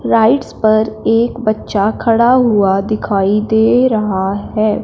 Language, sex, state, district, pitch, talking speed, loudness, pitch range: Hindi, female, Punjab, Fazilka, 215 Hz, 125 wpm, -13 LUFS, 205-230 Hz